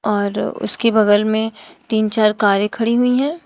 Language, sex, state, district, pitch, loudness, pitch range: Hindi, female, Uttar Pradesh, Shamli, 220 Hz, -17 LUFS, 210-235 Hz